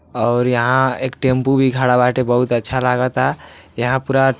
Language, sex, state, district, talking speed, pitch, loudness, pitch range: Bhojpuri, male, Uttar Pradesh, Deoria, 175 wpm, 130 Hz, -16 LUFS, 120-130 Hz